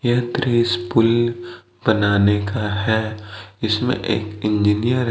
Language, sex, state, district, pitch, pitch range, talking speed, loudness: Hindi, male, Jharkhand, Deoghar, 110 Hz, 105-120 Hz, 115 wpm, -19 LUFS